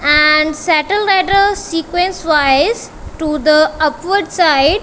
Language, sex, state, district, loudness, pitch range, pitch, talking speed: English, female, Punjab, Kapurthala, -13 LUFS, 305-385 Hz, 320 Hz, 125 wpm